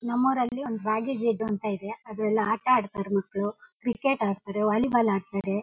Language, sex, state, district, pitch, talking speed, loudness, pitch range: Kannada, female, Karnataka, Shimoga, 215 Hz, 140 wpm, -27 LUFS, 205-240 Hz